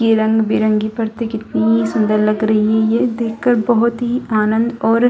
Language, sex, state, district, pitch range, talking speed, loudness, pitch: Hindi, female, Bihar, Kishanganj, 215-235 Hz, 190 wpm, -16 LUFS, 225 Hz